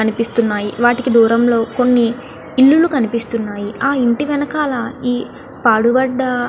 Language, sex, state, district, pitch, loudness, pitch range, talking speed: Telugu, female, Andhra Pradesh, Guntur, 240 Hz, -15 LUFS, 230-260 Hz, 55 wpm